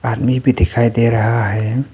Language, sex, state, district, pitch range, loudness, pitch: Hindi, male, Arunachal Pradesh, Papum Pare, 110-125 Hz, -15 LUFS, 115 Hz